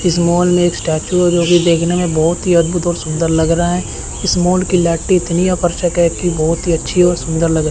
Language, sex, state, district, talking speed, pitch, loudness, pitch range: Hindi, male, Chandigarh, Chandigarh, 235 wpm, 175 Hz, -14 LUFS, 165-175 Hz